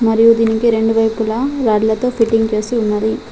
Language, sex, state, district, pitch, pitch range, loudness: Telugu, female, Telangana, Adilabad, 225 Hz, 220-230 Hz, -15 LUFS